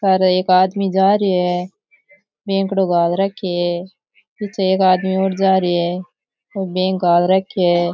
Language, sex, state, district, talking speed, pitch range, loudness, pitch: Rajasthani, male, Rajasthan, Churu, 165 wpm, 180-195 Hz, -17 LUFS, 190 Hz